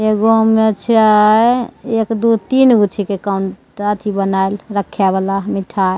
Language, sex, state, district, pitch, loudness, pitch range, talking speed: Maithili, female, Bihar, Begusarai, 210 Hz, -14 LUFS, 195-225 Hz, 150 wpm